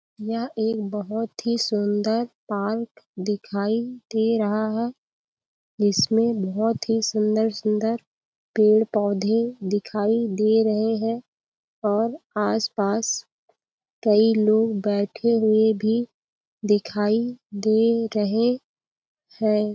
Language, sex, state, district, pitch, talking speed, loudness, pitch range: Hindi, female, Chhattisgarh, Balrampur, 220 Hz, 90 wpm, -23 LUFS, 210-225 Hz